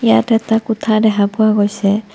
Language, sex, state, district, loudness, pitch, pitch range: Assamese, female, Assam, Kamrup Metropolitan, -14 LUFS, 215 Hz, 205-220 Hz